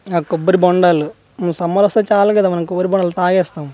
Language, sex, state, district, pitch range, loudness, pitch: Telugu, male, Andhra Pradesh, Manyam, 170-190 Hz, -15 LUFS, 180 Hz